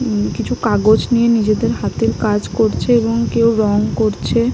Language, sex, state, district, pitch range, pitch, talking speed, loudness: Bengali, female, West Bengal, Malda, 215-235 Hz, 220 Hz, 160 wpm, -16 LUFS